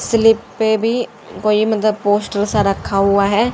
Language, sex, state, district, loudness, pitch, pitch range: Hindi, female, Haryana, Jhajjar, -16 LUFS, 215 Hz, 205-220 Hz